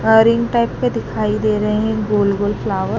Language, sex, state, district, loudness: Hindi, male, Madhya Pradesh, Dhar, -17 LUFS